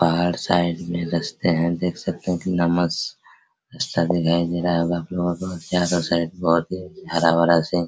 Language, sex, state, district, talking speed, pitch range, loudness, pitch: Hindi, male, Bihar, Araria, 205 wpm, 85-90 Hz, -22 LUFS, 85 Hz